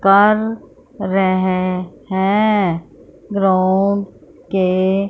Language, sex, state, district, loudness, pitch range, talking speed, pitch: Hindi, female, Punjab, Fazilka, -17 LUFS, 185-200 Hz, 60 wpm, 195 Hz